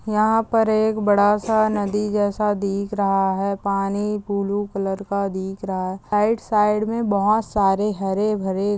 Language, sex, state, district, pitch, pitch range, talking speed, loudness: Hindi, female, Chhattisgarh, Kabirdham, 205 Hz, 195-210 Hz, 165 wpm, -21 LUFS